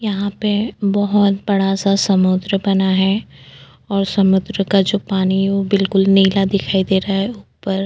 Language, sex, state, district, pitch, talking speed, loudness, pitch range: Hindi, female, Goa, North and South Goa, 195 Hz, 170 wpm, -16 LUFS, 190-200 Hz